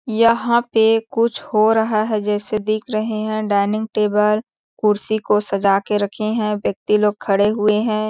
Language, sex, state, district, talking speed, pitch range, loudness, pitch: Hindi, female, Chhattisgarh, Sarguja, 170 wpm, 210-220 Hz, -18 LUFS, 215 Hz